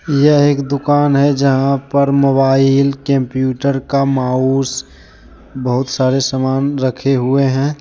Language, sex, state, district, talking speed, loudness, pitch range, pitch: Hindi, male, Jharkhand, Deoghar, 125 wpm, -14 LUFS, 130-140 Hz, 135 Hz